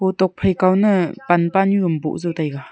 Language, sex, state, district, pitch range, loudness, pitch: Wancho, female, Arunachal Pradesh, Longding, 170-190 Hz, -18 LUFS, 185 Hz